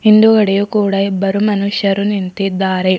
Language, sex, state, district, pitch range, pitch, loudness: Kannada, female, Karnataka, Bidar, 195-205 Hz, 200 Hz, -14 LUFS